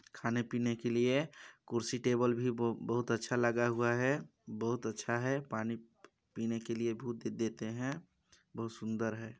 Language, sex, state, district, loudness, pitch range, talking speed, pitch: Hindi, male, Chhattisgarh, Balrampur, -36 LUFS, 115-120 Hz, 185 wpm, 115 Hz